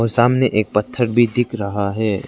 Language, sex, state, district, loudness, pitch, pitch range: Hindi, male, Arunachal Pradesh, Lower Dibang Valley, -18 LUFS, 115 Hz, 105-120 Hz